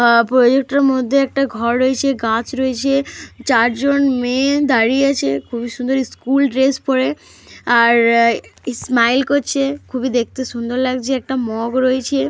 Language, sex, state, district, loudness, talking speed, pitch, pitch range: Bengali, female, Jharkhand, Jamtara, -16 LUFS, 135 wpm, 255 Hz, 235-270 Hz